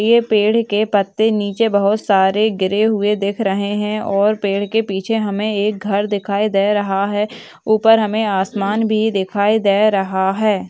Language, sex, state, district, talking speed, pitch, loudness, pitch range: Hindi, female, Chhattisgarh, Sukma, 175 wpm, 210 Hz, -17 LUFS, 200-215 Hz